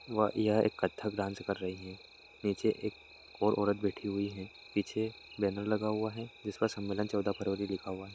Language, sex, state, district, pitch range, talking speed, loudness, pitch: Hindi, male, Bihar, Jamui, 100-110 Hz, 200 wpm, -34 LUFS, 105 Hz